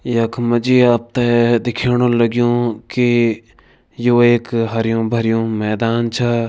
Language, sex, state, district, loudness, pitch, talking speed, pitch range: Kumaoni, male, Uttarakhand, Tehri Garhwal, -16 LUFS, 120 Hz, 110 wpm, 115-120 Hz